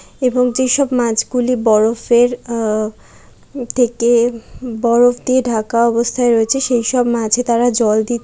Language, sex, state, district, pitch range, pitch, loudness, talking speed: Bengali, female, West Bengal, Jalpaiguri, 230-250 Hz, 240 Hz, -15 LUFS, 130 wpm